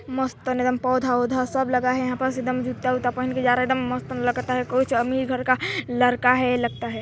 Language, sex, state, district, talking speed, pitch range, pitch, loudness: Hindi, female, Chhattisgarh, Balrampur, 265 wpm, 250-255 Hz, 255 Hz, -23 LUFS